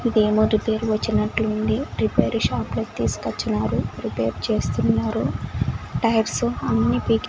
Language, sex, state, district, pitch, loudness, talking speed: Telugu, female, Andhra Pradesh, Sri Satya Sai, 215 Hz, -22 LUFS, 90 wpm